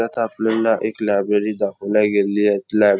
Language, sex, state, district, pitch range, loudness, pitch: Marathi, male, Maharashtra, Nagpur, 105-110 Hz, -19 LUFS, 105 Hz